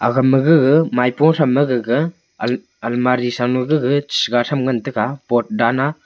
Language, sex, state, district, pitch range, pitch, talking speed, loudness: Wancho, male, Arunachal Pradesh, Longding, 120-145 Hz, 130 Hz, 160 wpm, -17 LUFS